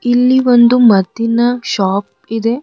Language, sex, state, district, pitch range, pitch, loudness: Kannada, female, Karnataka, Bidar, 225-245 Hz, 240 Hz, -12 LUFS